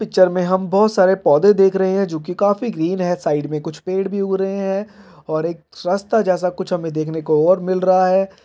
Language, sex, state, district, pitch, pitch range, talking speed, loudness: Hindi, male, Bihar, Jahanabad, 185 Hz, 175-195 Hz, 240 wpm, -18 LUFS